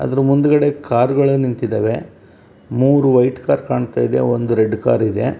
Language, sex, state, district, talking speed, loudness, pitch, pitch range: Kannada, male, Karnataka, Bellary, 165 wpm, -16 LUFS, 125 Hz, 115-135 Hz